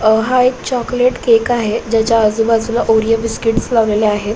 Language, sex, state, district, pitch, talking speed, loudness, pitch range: Marathi, female, Maharashtra, Solapur, 225 Hz, 165 wpm, -14 LUFS, 220-240 Hz